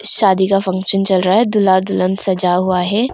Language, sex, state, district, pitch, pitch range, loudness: Hindi, female, Arunachal Pradesh, Longding, 190 Hz, 185-195 Hz, -14 LUFS